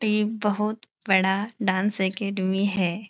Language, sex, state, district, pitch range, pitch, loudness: Hindi, female, Bihar, Supaul, 190-210 Hz, 200 Hz, -24 LUFS